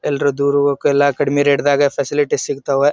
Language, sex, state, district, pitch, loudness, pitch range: Kannada, male, Karnataka, Dharwad, 145 Hz, -16 LUFS, 140-145 Hz